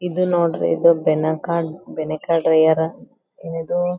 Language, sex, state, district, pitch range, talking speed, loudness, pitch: Kannada, female, Karnataka, Belgaum, 160-175 Hz, 105 wpm, -19 LUFS, 165 Hz